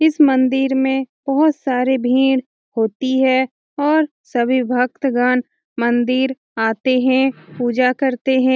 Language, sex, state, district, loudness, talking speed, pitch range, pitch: Hindi, female, Bihar, Lakhisarai, -17 LUFS, 125 wpm, 250-270 Hz, 260 Hz